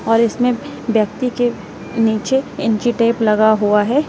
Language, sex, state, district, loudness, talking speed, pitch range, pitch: Hindi, female, Uttar Pradesh, Lalitpur, -17 LUFS, 145 wpm, 220-245 Hz, 230 Hz